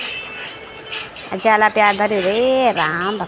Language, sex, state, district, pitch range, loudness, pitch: Garhwali, female, Uttarakhand, Tehri Garhwal, 205-225 Hz, -16 LUFS, 215 Hz